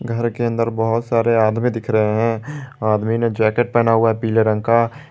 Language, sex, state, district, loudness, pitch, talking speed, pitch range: Hindi, male, Jharkhand, Garhwa, -18 LUFS, 115 Hz, 210 wpm, 110-120 Hz